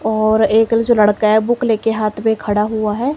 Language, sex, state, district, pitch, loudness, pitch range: Hindi, female, Himachal Pradesh, Shimla, 220 Hz, -15 LUFS, 215-225 Hz